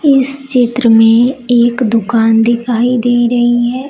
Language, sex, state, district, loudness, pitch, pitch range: Hindi, female, Uttar Pradesh, Shamli, -11 LUFS, 240 Hz, 235-250 Hz